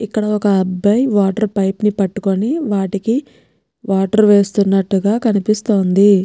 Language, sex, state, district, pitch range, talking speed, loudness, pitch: Telugu, female, Telangana, Nalgonda, 195-215 Hz, 105 wpm, -15 LUFS, 205 Hz